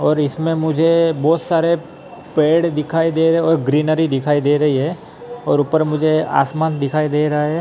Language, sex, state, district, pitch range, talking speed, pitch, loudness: Hindi, male, Maharashtra, Mumbai Suburban, 150-165 Hz, 180 wpm, 155 Hz, -17 LUFS